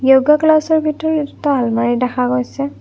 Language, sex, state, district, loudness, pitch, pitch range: Assamese, female, Assam, Kamrup Metropolitan, -15 LUFS, 265 Hz, 240-305 Hz